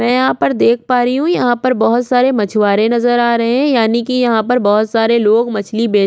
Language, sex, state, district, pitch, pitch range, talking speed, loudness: Hindi, female, Chhattisgarh, Korba, 235 Hz, 220-250 Hz, 255 wpm, -13 LUFS